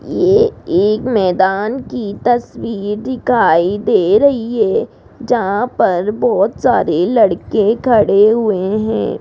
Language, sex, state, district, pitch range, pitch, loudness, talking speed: Hindi, female, Rajasthan, Jaipur, 205-255 Hz, 220 Hz, -14 LUFS, 110 wpm